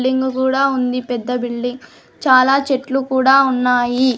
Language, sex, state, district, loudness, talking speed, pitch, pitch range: Telugu, female, Andhra Pradesh, Sri Satya Sai, -16 LUFS, 130 wpm, 260 Hz, 250-265 Hz